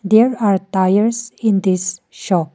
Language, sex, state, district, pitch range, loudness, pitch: English, female, Arunachal Pradesh, Lower Dibang Valley, 185-220 Hz, -16 LUFS, 195 Hz